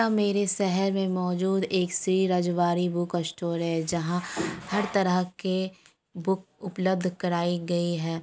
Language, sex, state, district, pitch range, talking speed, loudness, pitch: Hindi, female, Bihar, Lakhisarai, 175-190 Hz, 145 wpm, -27 LUFS, 180 Hz